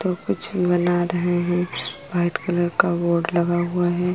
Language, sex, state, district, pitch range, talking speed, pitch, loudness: Hindi, female, Uttar Pradesh, Jalaun, 175-180 Hz, 175 wpm, 175 Hz, -22 LUFS